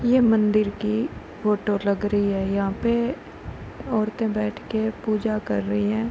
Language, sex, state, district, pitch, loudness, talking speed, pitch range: Hindi, female, Uttar Pradesh, Hamirpur, 210 Hz, -24 LUFS, 135 wpm, 200-220 Hz